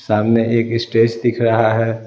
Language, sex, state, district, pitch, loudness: Hindi, male, Bihar, Patna, 115 Hz, -16 LUFS